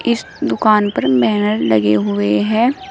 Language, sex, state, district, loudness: Hindi, female, Uttar Pradesh, Shamli, -15 LUFS